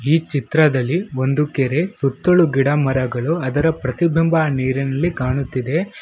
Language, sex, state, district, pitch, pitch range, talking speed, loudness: Kannada, male, Karnataka, Koppal, 145 Hz, 130-165 Hz, 100 wpm, -18 LUFS